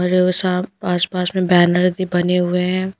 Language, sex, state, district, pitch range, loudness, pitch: Hindi, female, Punjab, Pathankot, 180-185 Hz, -17 LUFS, 180 Hz